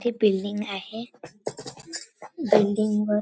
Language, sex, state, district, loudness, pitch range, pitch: Marathi, female, Maharashtra, Chandrapur, -26 LUFS, 205-225 Hz, 210 Hz